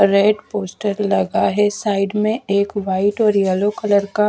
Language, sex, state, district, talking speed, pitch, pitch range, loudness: Hindi, female, Chhattisgarh, Raipur, 165 wpm, 205 Hz, 200-210 Hz, -18 LUFS